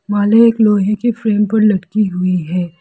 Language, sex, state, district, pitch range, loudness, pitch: Hindi, female, Arunachal Pradesh, Lower Dibang Valley, 185-220 Hz, -14 LUFS, 210 Hz